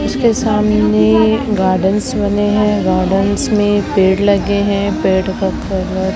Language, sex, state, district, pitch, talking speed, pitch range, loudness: Hindi, male, Chhattisgarh, Raipur, 200 Hz, 135 wpm, 190-210 Hz, -14 LUFS